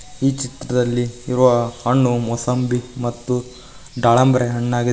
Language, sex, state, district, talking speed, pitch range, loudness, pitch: Kannada, male, Karnataka, Koppal, 95 wpm, 120-125 Hz, -19 LUFS, 125 Hz